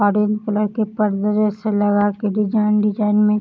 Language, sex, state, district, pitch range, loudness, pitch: Hindi, female, Uttar Pradesh, Varanasi, 205-210 Hz, -18 LUFS, 210 Hz